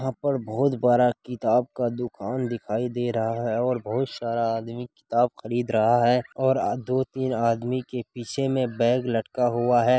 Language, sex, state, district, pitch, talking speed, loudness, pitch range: Hindi, male, Bihar, Kishanganj, 120 Hz, 175 wpm, -25 LUFS, 115-125 Hz